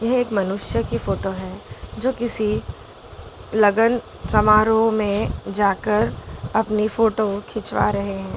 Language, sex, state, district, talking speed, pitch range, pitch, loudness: Hindi, female, Gujarat, Valsad, 115 wpm, 200-225 Hz, 215 Hz, -20 LUFS